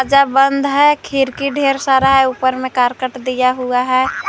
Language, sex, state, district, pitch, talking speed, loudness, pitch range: Hindi, female, Uttar Pradesh, Lucknow, 265 Hz, 180 wpm, -14 LUFS, 255-275 Hz